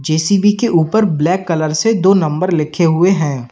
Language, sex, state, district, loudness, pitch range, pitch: Hindi, male, Uttar Pradesh, Lalitpur, -14 LUFS, 155-195 Hz, 170 Hz